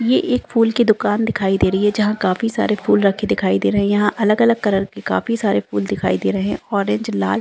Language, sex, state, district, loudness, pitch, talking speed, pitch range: Hindi, female, Uttarakhand, Uttarkashi, -18 LUFS, 205 Hz, 260 wpm, 185-225 Hz